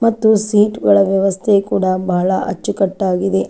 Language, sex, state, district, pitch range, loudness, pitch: Kannada, female, Karnataka, Chamarajanagar, 190-210 Hz, -15 LUFS, 195 Hz